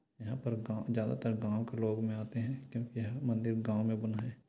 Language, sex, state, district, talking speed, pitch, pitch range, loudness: Hindi, male, Chhattisgarh, Korba, 225 wpm, 115 Hz, 110-120 Hz, -36 LUFS